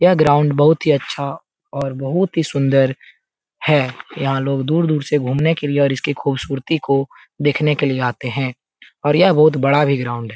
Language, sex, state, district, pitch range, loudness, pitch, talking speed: Hindi, male, Bihar, Saran, 135-150 Hz, -17 LUFS, 140 Hz, 190 wpm